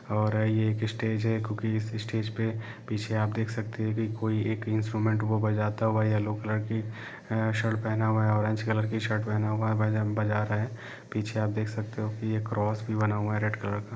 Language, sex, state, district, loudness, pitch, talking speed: Hindi, male, Jharkhand, Jamtara, -29 LUFS, 110 Hz, 230 wpm